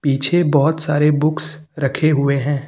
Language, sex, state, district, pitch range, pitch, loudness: Hindi, male, Uttar Pradesh, Lucknow, 140-155 Hz, 150 Hz, -17 LUFS